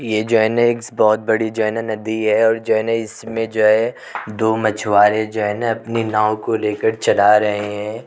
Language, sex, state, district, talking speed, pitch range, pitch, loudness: Hindi, male, Uttar Pradesh, Jyotiba Phule Nagar, 230 wpm, 105-115 Hz, 110 Hz, -17 LUFS